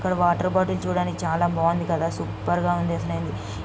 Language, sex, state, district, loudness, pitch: Telugu, female, Andhra Pradesh, Guntur, -24 LUFS, 165 Hz